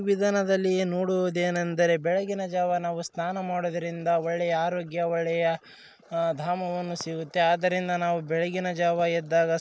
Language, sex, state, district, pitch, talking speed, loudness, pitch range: Kannada, male, Karnataka, Raichur, 175 Hz, 110 wpm, -27 LUFS, 170-180 Hz